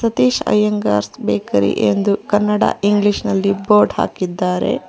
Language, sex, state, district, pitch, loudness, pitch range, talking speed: Kannada, female, Karnataka, Bangalore, 205 Hz, -16 LUFS, 180-210 Hz, 100 wpm